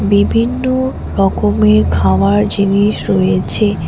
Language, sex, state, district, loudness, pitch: Bengali, female, West Bengal, Alipurduar, -13 LUFS, 185 Hz